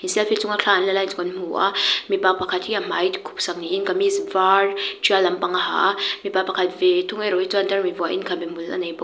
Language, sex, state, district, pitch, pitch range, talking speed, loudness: Mizo, female, Mizoram, Aizawl, 195 Hz, 180-210 Hz, 260 wpm, -21 LUFS